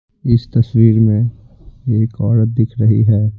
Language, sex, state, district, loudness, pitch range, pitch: Hindi, male, Bihar, Patna, -14 LUFS, 110-120 Hz, 115 Hz